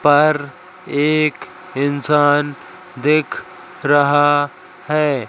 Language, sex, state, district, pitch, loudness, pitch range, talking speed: Hindi, male, Madhya Pradesh, Katni, 150 Hz, -17 LUFS, 145-180 Hz, 70 wpm